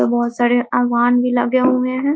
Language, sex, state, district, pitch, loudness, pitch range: Hindi, female, Bihar, Muzaffarpur, 245 Hz, -16 LUFS, 240-255 Hz